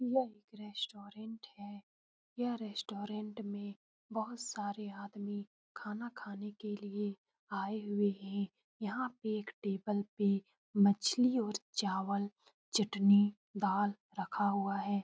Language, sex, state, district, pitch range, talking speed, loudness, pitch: Hindi, female, Uttar Pradesh, Muzaffarnagar, 200-215 Hz, 115 wpm, -37 LUFS, 205 Hz